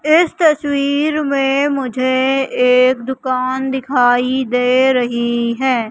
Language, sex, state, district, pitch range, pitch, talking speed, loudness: Hindi, female, Madhya Pradesh, Katni, 250-280 Hz, 260 Hz, 100 wpm, -15 LUFS